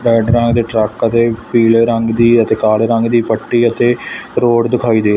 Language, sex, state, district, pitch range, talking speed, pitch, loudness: Punjabi, male, Punjab, Fazilka, 115-120 Hz, 175 wpm, 115 Hz, -13 LUFS